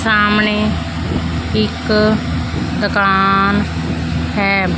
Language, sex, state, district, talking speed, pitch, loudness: Punjabi, female, Punjab, Fazilka, 50 wpm, 195 Hz, -15 LUFS